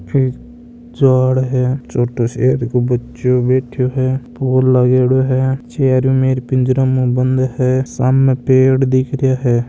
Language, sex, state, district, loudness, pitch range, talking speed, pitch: Marwari, male, Rajasthan, Nagaur, -15 LUFS, 125-130 Hz, 130 wpm, 130 Hz